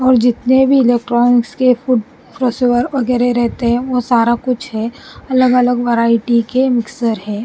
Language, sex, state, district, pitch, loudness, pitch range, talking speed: Hindi, female, Punjab, Pathankot, 245 Hz, -14 LUFS, 235-255 Hz, 170 wpm